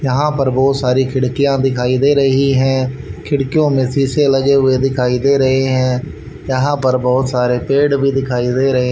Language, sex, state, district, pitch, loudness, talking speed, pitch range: Hindi, male, Haryana, Rohtak, 135 Hz, -14 LUFS, 180 wpm, 130-140 Hz